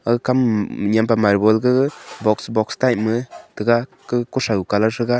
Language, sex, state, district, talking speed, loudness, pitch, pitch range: Wancho, male, Arunachal Pradesh, Longding, 175 wpm, -19 LUFS, 115 Hz, 110-120 Hz